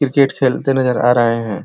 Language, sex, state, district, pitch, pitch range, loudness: Hindi, male, Uttar Pradesh, Ghazipur, 125 Hz, 120-135 Hz, -15 LUFS